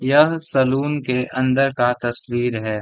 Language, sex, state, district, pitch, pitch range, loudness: Hindi, male, Bihar, Gaya, 130 Hz, 120-140 Hz, -19 LUFS